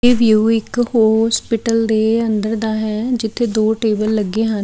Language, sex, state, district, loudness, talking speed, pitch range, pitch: Punjabi, female, Chandigarh, Chandigarh, -16 LUFS, 170 wpm, 215-230 Hz, 220 Hz